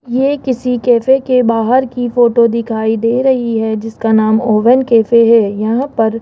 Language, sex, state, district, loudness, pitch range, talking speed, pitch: Hindi, male, Rajasthan, Jaipur, -12 LUFS, 225-250 Hz, 185 wpm, 235 Hz